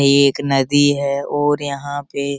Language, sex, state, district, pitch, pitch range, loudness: Hindi, male, Bihar, Araria, 140 Hz, 140-145 Hz, -17 LUFS